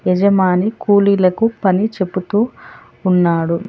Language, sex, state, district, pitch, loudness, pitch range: Telugu, female, Telangana, Hyderabad, 190 Hz, -15 LUFS, 180-205 Hz